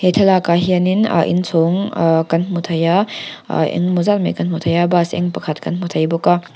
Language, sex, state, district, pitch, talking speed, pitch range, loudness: Mizo, female, Mizoram, Aizawl, 175 Hz, 265 wpm, 165-185 Hz, -16 LUFS